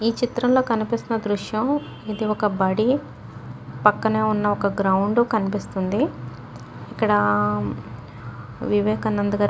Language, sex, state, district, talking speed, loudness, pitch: Telugu, female, Telangana, Nalgonda, 100 wpm, -22 LUFS, 205 Hz